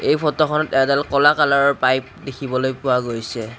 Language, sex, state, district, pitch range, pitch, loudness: Assamese, male, Assam, Kamrup Metropolitan, 130-145 Hz, 135 Hz, -18 LUFS